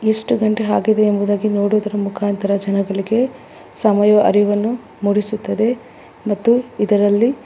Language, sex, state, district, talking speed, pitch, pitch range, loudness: Kannada, female, Karnataka, Bangalore, 50 wpm, 210 Hz, 205-220 Hz, -17 LUFS